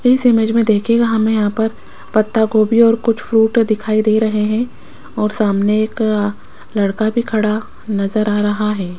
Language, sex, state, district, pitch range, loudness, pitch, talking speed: Hindi, female, Rajasthan, Jaipur, 210-225 Hz, -16 LUFS, 215 Hz, 180 wpm